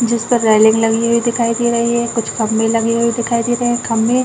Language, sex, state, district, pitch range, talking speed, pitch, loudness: Hindi, female, Chhattisgarh, Raigarh, 225-235 Hz, 270 wpm, 235 Hz, -15 LUFS